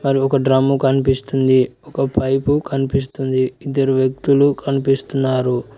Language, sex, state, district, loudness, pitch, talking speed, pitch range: Telugu, male, Telangana, Mahabubabad, -17 LUFS, 135 Hz, 95 wpm, 130-135 Hz